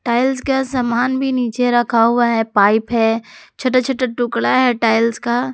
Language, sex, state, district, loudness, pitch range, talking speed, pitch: Hindi, female, Jharkhand, Garhwa, -16 LUFS, 230-255 Hz, 175 wpm, 240 Hz